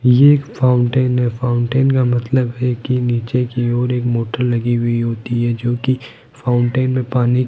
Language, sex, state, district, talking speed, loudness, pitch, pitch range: Hindi, male, Rajasthan, Jaipur, 195 wpm, -17 LUFS, 125 Hz, 120-125 Hz